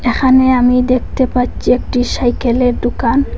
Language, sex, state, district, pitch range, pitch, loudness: Bengali, female, Assam, Hailakandi, 245-260 Hz, 250 Hz, -13 LUFS